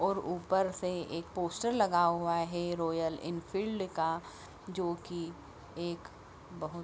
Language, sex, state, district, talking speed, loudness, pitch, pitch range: Hindi, female, Bihar, Bhagalpur, 140 wpm, -34 LUFS, 175 Hz, 170-185 Hz